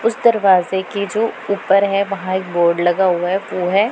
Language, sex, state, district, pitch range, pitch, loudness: Hindi, female, Punjab, Pathankot, 185-200 Hz, 195 Hz, -17 LUFS